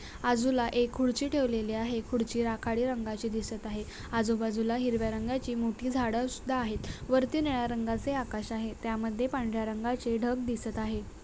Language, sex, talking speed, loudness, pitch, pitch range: Marathi, female, 150 wpm, -32 LUFS, 235 Hz, 225-250 Hz